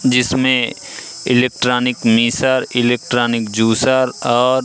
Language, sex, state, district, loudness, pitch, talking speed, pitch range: Hindi, male, Madhya Pradesh, Katni, -15 LUFS, 125 Hz, 75 wpm, 120-130 Hz